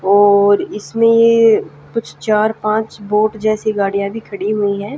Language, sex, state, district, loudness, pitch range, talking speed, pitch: Hindi, female, Haryana, Jhajjar, -15 LUFS, 200-220 Hz, 145 wpm, 210 Hz